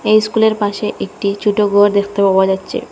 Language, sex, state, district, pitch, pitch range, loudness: Bengali, female, Assam, Hailakandi, 205 Hz, 200-215 Hz, -15 LUFS